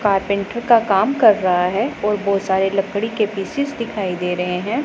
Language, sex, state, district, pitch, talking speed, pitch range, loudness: Hindi, female, Punjab, Pathankot, 200 Hz, 195 wpm, 190-220 Hz, -18 LUFS